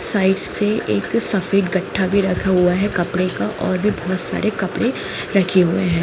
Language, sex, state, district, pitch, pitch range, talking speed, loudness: Hindi, female, Jharkhand, Jamtara, 190 Hz, 185-200 Hz, 190 wpm, -18 LUFS